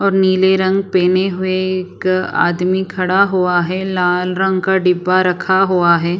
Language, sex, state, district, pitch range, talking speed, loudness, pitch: Hindi, female, Chhattisgarh, Sukma, 180-190 Hz, 165 wpm, -15 LUFS, 185 Hz